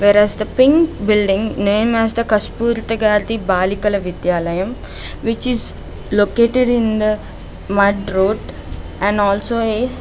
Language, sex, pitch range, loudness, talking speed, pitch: English, female, 200-230 Hz, -16 LUFS, 130 wpm, 210 Hz